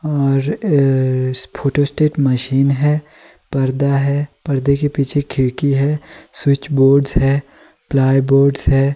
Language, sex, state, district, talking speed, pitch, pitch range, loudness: Hindi, male, Himachal Pradesh, Shimla, 115 wpm, 140 Hz, 135-145 Hz, -16 LUFS